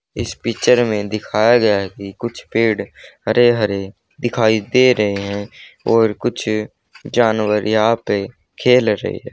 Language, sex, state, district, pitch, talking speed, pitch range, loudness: Hindi, male, Haryana, Rohtak, 110 Hz, 140 wpm, 100-120 Hz, -17 LUFS